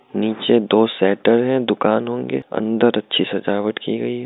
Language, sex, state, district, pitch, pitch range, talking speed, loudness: Hindi, male, Bihar, Muzaffarpur, 110 Hz, 100-115 Hz, 185 wpm, -18 LUFS